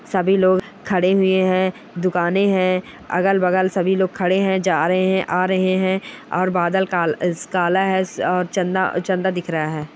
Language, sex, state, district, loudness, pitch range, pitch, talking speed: Hindi, male, Bihar, Bhagalpur, -19 LUFS, 180-190 Hz, 185 Hz, 175 wpm